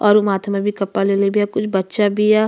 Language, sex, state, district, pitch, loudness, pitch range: Bhojpuri, female, Uttar Pradesh, Gorakhpur, 205 Hz, -18 LUFS, 195-210 Hz